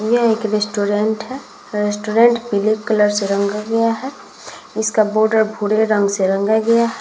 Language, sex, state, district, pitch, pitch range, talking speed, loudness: Hindi, female, Uttar Pradesh, Muzaffarnagar, 215 Hz, 210-225 Hz, 155 wpm, -17 LUFS